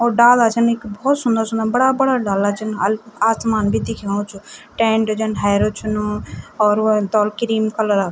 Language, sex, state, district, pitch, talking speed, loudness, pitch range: Garhwali, female, Uttarakhand, Tehri Garhwal, 220 Hz, 190 wpm, -18 LUFS, 210-230 Hz